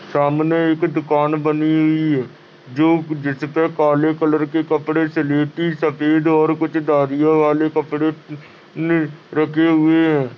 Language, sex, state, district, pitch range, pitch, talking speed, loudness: Hindi, male, Uttar Pradesh, Ghazipur, 150-160 Hz, 155 Hz, 140 wpm, -17 LUFS